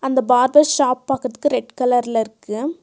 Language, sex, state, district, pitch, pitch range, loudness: Tamil, female, Tamil Nadu, Nilgiris, 255 Hz, 245-280 Hz, -18 LUFS